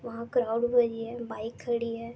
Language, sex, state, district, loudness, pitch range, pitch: Hindi, female, West Bengal, Jalpaiguri, -29 LUFS, 230-240 Hz, 235 Hz